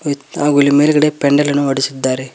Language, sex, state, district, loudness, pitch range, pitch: Kannada, male, Karnataka, Koppal, -14 LUFS, 135-145 Hz, 145 Hz